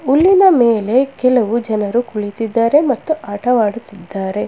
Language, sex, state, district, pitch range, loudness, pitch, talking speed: Kannada, female, Karnataka, Bangalore, 210-260 Hz, -15 LUFS, 235 Hz, 95 wpm